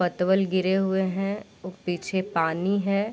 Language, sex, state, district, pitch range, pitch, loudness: Hindi, female, Bihar, Sitamarhi, 180-195 Hz, 190 Hz, -25 LUFS